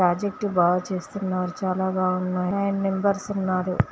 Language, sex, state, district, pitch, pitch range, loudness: Telugu, male, Andhra Pradesh, Guntur, 185 Hz, 180-200 Hz, -24 LUFS